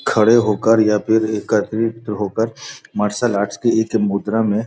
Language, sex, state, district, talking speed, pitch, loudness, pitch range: Hindi, male, Bihar, Gopalganj, 155 wpm, 110 Hz, -17 LUFS, 105-115 Hz